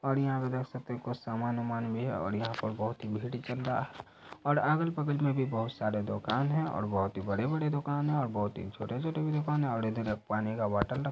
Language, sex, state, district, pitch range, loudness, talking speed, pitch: Hindi, male, Bihar, Saharsa, 110-140 Hz, -33 LUFS, 260 wpm, 120 Hz